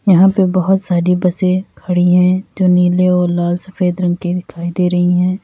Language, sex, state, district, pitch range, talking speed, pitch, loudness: Hindi, female, Uttar Pradesh, Lalitpur, 180-185 Hz, 200 wpm, 180 Hz, -14 LUFS